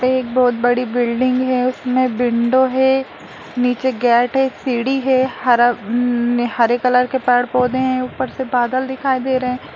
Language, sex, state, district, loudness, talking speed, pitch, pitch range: Hindi, female, Bihar, Lakhisarai, -17 LUFS, 170 wpm, 250 Hz, 245-260 Hz